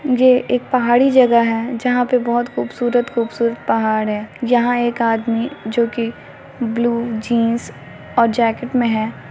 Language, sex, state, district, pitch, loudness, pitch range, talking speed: Hindi, female, Bihar, Muzaffarpur, 235 Hz, -17 LUFS, 230-245 Hz, 140 wpm